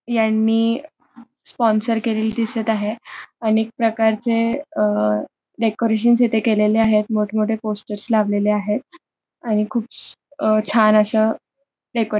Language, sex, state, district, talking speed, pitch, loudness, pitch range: Marathi, female, Maharashtra, Pune, 115 wpm, 220 Hz, -19 LUFS, 215-235 Hz